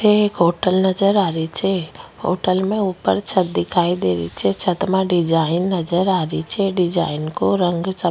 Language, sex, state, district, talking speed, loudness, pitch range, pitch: Rajasthani, female, Rajasthan, Nagaur, 190 wpm, -19 LUFS, 165-190 Hz, 180 Hz